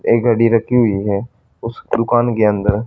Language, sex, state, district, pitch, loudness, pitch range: Hindi, male, Haryana, Charkhi Dadri, 115 Hz, -15 LUFS, 105-120 Hz